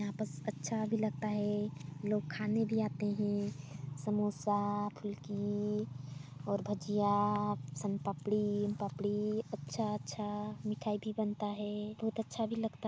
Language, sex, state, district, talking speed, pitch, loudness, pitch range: Hindi, female, Chhattisgarh, Sarguja, 125 wpm, 205 Hz, -37 LUFS, 200-210 Hz